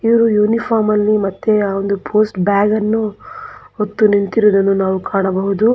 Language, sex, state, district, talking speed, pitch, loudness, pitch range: Kannada, female, Karnataka, Belgaum, 125 wpm, 210 Hz, -15 LUFS, 200-220 Hz